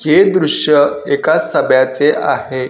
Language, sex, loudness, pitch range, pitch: Marathi, male, -13 LUFS, 130-150 Hz, 145 Hz